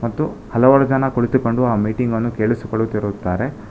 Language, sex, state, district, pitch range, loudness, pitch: Kannada, male, Karnataka, Bangalore, 110-130 Hz, -18 LUFS, 115 Hz